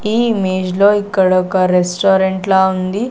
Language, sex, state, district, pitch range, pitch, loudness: Telugu, female, Andhra Pradesh, Sri Satya Sai, 185-205 Hz, 190 Hz, -14 LUFS